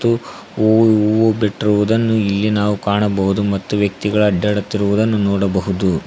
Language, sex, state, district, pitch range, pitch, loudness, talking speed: Kannada, male, Karnataka, Koppal, 100-110 Hz, 105 Hz, -16 LUFS, 80 wpm